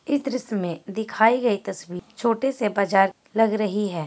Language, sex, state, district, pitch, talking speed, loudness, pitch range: Hindi, female, Bihar, Gaya, 215 Hz, 175 wpm, -23 LUFS, 195-230 Hz